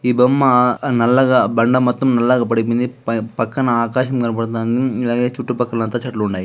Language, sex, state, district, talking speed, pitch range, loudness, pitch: Telugu, male, Andhra Pradesh, Guntur, 165 wpm, 115-125 Hz, -17 LUFS, 125 Hz